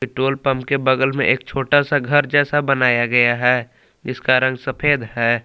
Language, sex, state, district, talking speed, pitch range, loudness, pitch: Hindi, male, Jharkhand, Palamu, 185 wpm, 125-140 Hz, -17 LUFS, 130 Hz